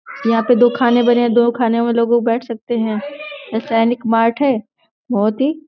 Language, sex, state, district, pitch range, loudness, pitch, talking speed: Hindi, female, Uttar Pradesh, Deoria, 230-245 Hz, -16 LUFS, 235 Hz, 170 wpm